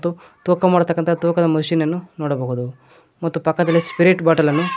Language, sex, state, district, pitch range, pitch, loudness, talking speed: Kannada, male, Karnataka, Koppal, 155-175 Hz, 165 Hz, -18 LUFS, 125 wpm